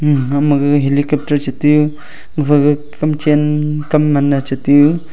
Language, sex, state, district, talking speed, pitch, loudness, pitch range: Wancho, male, Arunachal Pradesh, Longding, 105 wpm, 145 Hz, -14 LUFS, 145-150 Hz